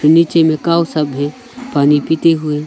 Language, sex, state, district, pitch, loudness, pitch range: Hindi, male, Arunachal Pradesh, Longding, 160 Hz, -14 LUFS, 150-165 Hz